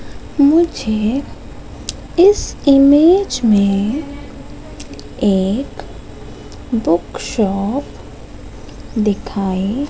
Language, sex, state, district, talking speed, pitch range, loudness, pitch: Hindi, female, Madhya Pradesh, Katni, 50 wpm, 200-285 Hz, -15 LUFS, 230 Hz